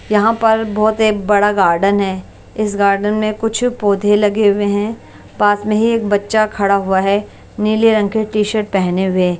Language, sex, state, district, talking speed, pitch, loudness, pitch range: Hindi, female, Punjab, Kapurthala, 190 wpm, 210 Hz, -15 LUFS, 200-215 Hz